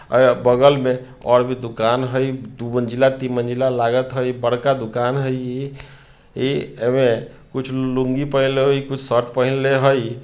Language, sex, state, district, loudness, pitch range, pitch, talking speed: Bhojpuri, male, Bihar, Sitamarhi, -19 LUFS, 125-135 Hz, 130 Hz, 160 wpm